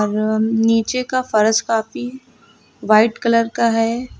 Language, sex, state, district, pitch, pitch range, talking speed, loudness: Hindi, female, Uttar Pradesh, Lucknow, 230 Hz, 220-245 Hz, 130 wpm, -17 LUFS